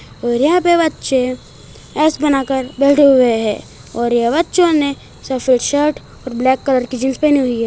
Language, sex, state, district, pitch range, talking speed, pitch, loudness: Hindi, male, Bihar, Sitamarhi, 250-295 Hz, 190 wpm, 265 Hz, -15 LUFS